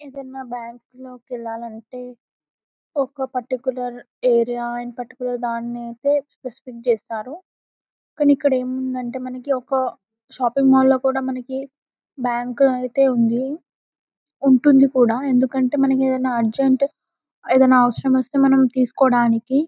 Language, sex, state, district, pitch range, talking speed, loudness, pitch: Telugu, female, Telangana, Karimnagar, 240-270 Hz, 115 wpm, -19 LUFS, 255 Hz